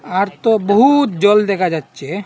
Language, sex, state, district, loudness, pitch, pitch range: Bengali, male, Assam, Hailakandi, -14 LUFS, 205 Hz, 190-225 Hz